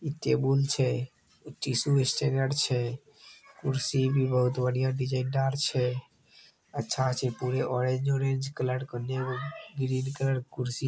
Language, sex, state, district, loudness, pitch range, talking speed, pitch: Maithili, male, Bihar, Begusarai, -29 LUFS, 125-135 Hz, 140 wpm, 130 Hz